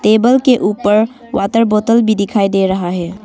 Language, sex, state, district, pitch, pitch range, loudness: Hindi, female, Arunachal Pradesh, Longding, 210 Hz, 195-230 Hz, -13 LUFS